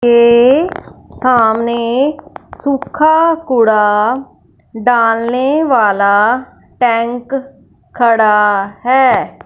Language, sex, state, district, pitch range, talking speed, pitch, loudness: Hindi, female, Punjab, Fazilka, 225-270 Hz, 55 wpm, 240 Hz, -12 LUFS